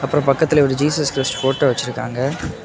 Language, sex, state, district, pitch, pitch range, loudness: Tamil, male, Tamil Nadu, Kanyakumari, 135 Hz, 130-145 Hz, -18 LUFS